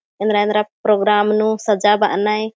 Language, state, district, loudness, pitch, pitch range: Kurukh, Chhattisgarh, Jashpur, -16 LUFS, 210 Hz, 210-215 Hz